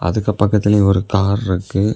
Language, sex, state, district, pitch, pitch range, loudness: Tamil, male, Tamil Nadu, Kanyakumari, 100 Hz, 95-105 Hz, -16 LUFS